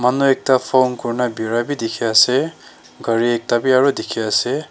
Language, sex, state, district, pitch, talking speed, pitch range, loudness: Nagamese, male, Nagaland, Dimapur, 120 Hz, 180 wpm, 115-130 Hz, -17 LUFS